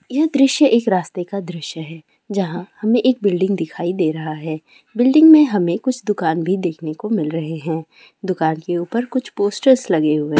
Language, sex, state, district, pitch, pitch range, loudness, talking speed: Hindi, female, Bihar, Gopalganj, 185 Hz, 160-230 Hz, -18 LUFS, 190 wpm